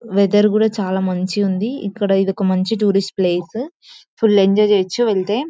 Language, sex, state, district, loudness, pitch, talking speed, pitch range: Telugu, female, Telangana, Nalgonda, -17 LUFS, 200 Hz, 130 wpm, 190-215 Hz